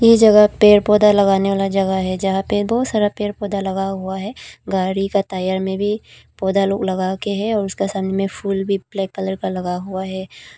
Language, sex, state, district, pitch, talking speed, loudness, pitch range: Hindi, female, Arunachal Pradesh, Papum Pare, 195 Hz, 220 wpm, -18 LUFS, 190-205 Hz